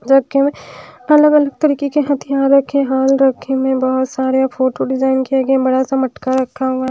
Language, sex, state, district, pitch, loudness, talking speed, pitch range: Hindi, female, Haryana, Rohtak, 265 Hz, -15 LUFS, 200 wpm, 260-275 Hz